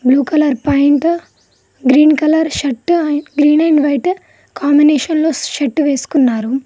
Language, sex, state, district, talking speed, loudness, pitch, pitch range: Telugu, female, Telangana, Mahabubabad, 125 wpm, -13 LUFS, 295 Hz, 280-315 Hz